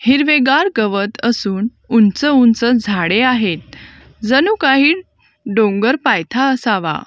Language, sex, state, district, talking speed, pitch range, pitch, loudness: Marathi, female, Maharashtra, Gondia, 100 wpm, 205-270 Hz, 235 Hz, -14 LUFS